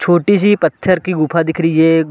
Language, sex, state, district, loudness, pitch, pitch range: Hindi, male, Chhattisgarh, Sarguja, -13 LUFS, 170 Hz, 160-185 Hz